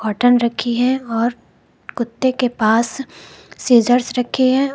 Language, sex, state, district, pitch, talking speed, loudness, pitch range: Hindi, female, Uttar Pradesh, Lucknow, 245 Hz, 125 wpm, -17 LUFS, 235-260 Hz